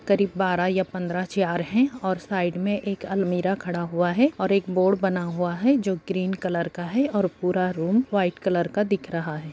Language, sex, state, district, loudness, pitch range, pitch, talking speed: Hindi, female, Bihar, Gopalganj, -24 LUFS, 175-200 Hz, 185 Hz, 215 wpm